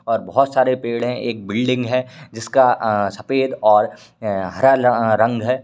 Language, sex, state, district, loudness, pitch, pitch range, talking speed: Hindi, male, Uttar Pradesh, Varanasi, -18 LUFS, 120 Hz, 110-130 Hz, 170 wpm